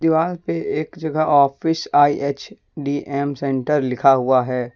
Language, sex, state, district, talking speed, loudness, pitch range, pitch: Hindi, male, Jharkhand, Deoghar, 100 wpm, -19 LUFS, 135-155 Hz, 140 Hz